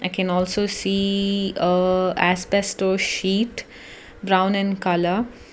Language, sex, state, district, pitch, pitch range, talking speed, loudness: English, female, Karnataka, Bangalore, 190 Hz, 185-200 Hz, 110 wpm, -21 LUFS